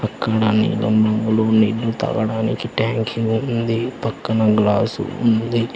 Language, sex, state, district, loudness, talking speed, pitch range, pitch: Telugu, male, Telangana, Hyderabad, -19 LUFS, 75 wpm, 110-115 Hz, 110 Hz